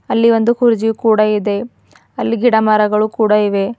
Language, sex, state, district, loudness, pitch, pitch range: Kannada, female, Karnataka, Bidar, -14 LUFS, 220 Hz, 210-230 Hz